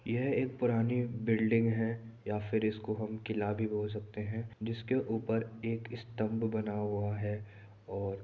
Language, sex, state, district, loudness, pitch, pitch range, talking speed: Hindi, male, Uttar Pradesh, Muzaffarnagar, -35 LUFS, 110 Hz, 105-115 Hz, 160 wpm